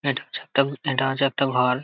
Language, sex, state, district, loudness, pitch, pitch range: Bengali, male, West Bengal, Jalpaiguri, -23 LUFS, 135 Hz, 130-140 Hz